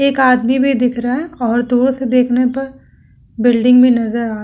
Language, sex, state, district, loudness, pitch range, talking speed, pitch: Hindi, female, Uttar Pradesh, Muzaffarnagar, -14 LUFS, 240-260 Hz, 215 wpm, 250 Hz